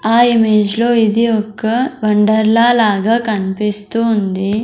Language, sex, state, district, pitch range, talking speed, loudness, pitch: Telugu, female, Andhra Pradesh, Sri Satya Sai, 210-230 Hz, 115 wpm, -13 LUFS, 220 Hz